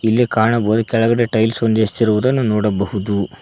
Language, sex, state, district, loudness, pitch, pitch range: Kannada, male, Karnataka, Koppal, -16 LUFS, 110 Hz, 105-115 Hz